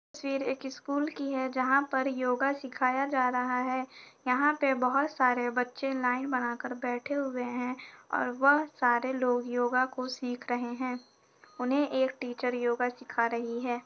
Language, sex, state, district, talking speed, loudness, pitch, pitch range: Hindi, female, Uttar Pradesh, Etah, 165 wpm, -30 LUFS, 255 Hz, 245-270 Hz